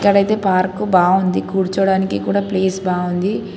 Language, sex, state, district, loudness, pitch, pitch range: Telugu, female, Telangana, Hyderabad, -17 LUFS, 190 Hz, 185-200 Hz